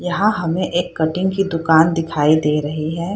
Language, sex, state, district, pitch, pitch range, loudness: Hindi, female, Bihar, Purnia, 165 Hz, 160-180 Hz, -17 LUFS